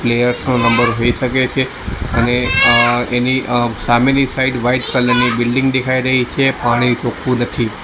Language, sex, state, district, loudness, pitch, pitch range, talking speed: Gujarati, male, Gujarat, Gandhinagar, -14 LUFS, 125 Hz, 120-130 Hz, 170 wpm